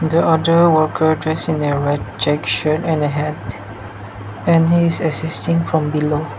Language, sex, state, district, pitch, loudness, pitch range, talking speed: English, male, Nagaland, Dimapur, 155 Hz, -16 LUFS, 145-160 Hz, 160 wpm